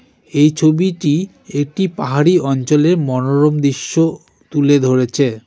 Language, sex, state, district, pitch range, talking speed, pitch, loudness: Bengali, male, West Bengal, Darjeeling, 135-165 Hz, 100 wpm, 145 Hz, -15 LUFS